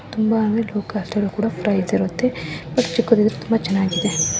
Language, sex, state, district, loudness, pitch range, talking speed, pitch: Kannada, female, Karnataka, Dharwad, -20 LUFS, 195-225 Hz, 175 wpm, 210 Hz